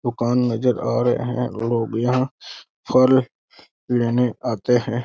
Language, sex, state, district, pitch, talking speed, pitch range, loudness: Hindi, male, Bihar, Muzaffarpur, 120 Hz, 130 wpm, 120-125 Hz, -20 LUFS